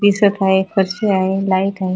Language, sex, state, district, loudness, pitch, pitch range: Marathi, female, Maharashtra, Chandrapur, -16 LUFS, 195 Hz, 190-200 Hz